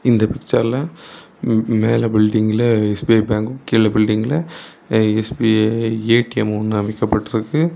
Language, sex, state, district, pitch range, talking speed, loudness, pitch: Tamil, male, Tamil Nadu, Kanyakumari, 110-115 Hz, 100 wpm, -17 LUFS, 110 Hz